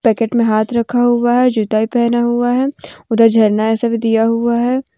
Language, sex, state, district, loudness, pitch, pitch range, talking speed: Hindi, female, Jharkhand, Deoghar, -14 LUFS, 235 Hz, 225-240 Hz, 215 wpm